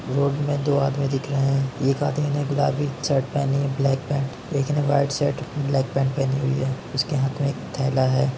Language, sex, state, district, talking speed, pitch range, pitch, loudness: Hindi, male, Uttar Pradesh, Varanasi, 220 wpm, 135-145 Hz, 140 Hz, -23 LUFS